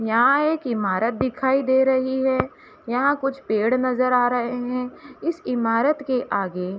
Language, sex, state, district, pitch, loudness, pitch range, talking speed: Hindi, female, Jharkhand, Jamtara, 255 Hz, -22 LUFS, 235-265 Hz, 170 wpm